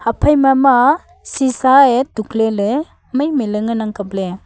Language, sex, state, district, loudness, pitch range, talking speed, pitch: Wancho, female, Arunachal Pradesh, Longding, -15 LUFS, 215-270 Hz, 200 wpm, 245 Hz